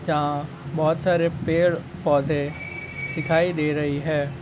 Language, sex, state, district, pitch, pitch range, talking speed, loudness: Hindi, male, Uttar Pradesh, Gorakhpur, 155 Hz, 145-165 Hz, 110 wpm, -24 LUFS